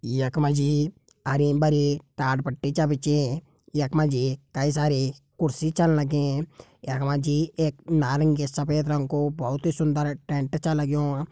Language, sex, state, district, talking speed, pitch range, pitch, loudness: Garhwali, male, Uttarakhand, Tehri Garhwal, 165 wpm, 140-150 Hz, 145 Hz, -25 LUFS